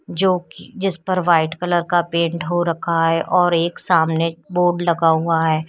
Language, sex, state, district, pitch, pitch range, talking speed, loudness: Hindi, female, Uttar Pradesh, Shamli, 170 Hz, 165-175 Hz, 190 wpm, -18 LUFS